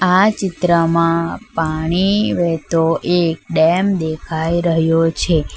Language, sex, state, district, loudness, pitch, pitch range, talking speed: Gujarati, female, Gujarat, Valsad, -16 LUFS, 165 Hz, 160-180 Hz, 95 wpm